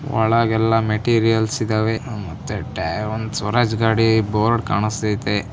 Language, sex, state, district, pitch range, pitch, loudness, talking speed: Kannada, female, Karnataka, Raichur, 105-115 Hz, 110 Hz, -19 LUFS, 110 wpm